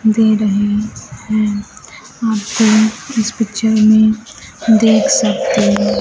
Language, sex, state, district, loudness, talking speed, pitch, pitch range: Hindi, female, Bihar, Kaimur, -14 LUFS, 90 wpm, 220 Hz, 210-220 Hz